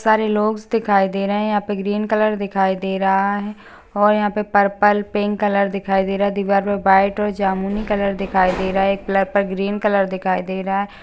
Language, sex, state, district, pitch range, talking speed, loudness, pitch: Hindi, female, Bihar, Jahanabad, 195-205 Hz, 235 wpm, -18 LUFS, 200 Hz